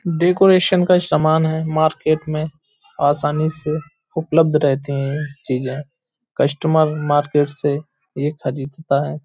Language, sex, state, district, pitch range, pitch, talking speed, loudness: Hindi, male, Uttar Pradesh, Hamirpur, 145-160 Hz, 150 Hz, 110 wpm, -18 LUFS